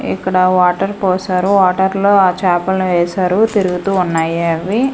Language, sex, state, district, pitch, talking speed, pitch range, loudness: Telugu, female, Andhra Pradesh, Manyam, 185 Hz, 135 wpm, 180-195 Hz, -14 LUFS